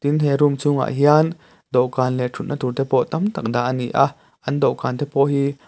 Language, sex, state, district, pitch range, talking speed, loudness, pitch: Mizo, male, Mizoram, Aizawl, 125-145 Hz, 220 wpm, -20 LUFS, 140 Hz